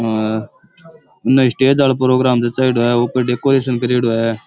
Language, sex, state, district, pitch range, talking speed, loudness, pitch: Rajasthani, male, Rajasthan, Churu, 120-130 Hz, 160 wpm, -15 LUFS, 125 Hz